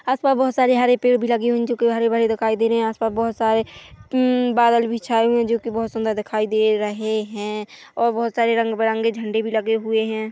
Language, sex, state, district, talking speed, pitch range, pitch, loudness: Hindi, female, Chhattisgarh, Korba, 235 wpm, 220-235 Hz, 230 Hz, -20 LUFS